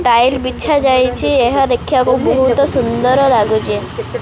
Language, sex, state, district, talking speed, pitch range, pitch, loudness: Odia, male, Odisha, Khordha, 115 wpm, 245-270 Hz, 255 Hz, -13 LUFS